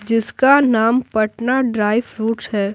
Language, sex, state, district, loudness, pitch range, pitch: Hindi, female, Bihar, Patna, -17 LUFS, 215-250 Hz, 225 Hz